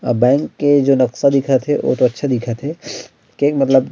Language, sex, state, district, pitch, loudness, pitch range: Chhattisgarhi, male, Chhattisgarh, Rajnandgaon, 135 Hz, -16 LUFS, 130-145 Hz